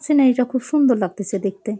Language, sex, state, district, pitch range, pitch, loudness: Bengali, female, West Bengal, Jalpaiguri, 200-265 Hz, 245 Hz, -19 LUFS